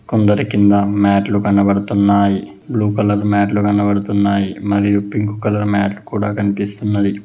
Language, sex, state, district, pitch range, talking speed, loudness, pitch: Telugu, male, Telangana, Hyderabad, 100-105 Hz, 130 wpm, -16 LUFS, 100 Hz